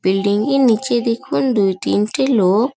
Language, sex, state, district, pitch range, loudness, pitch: Bengali, female, West Bengal, North 24 Parganas, 200-255 Hz, -16 LUFS, 225 Hz